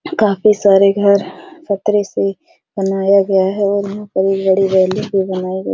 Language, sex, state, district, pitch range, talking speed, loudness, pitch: Hindi, female, Bihar, Supaul, 190-200 Hz, 190 wpm, -15 LUFS, 195 Hz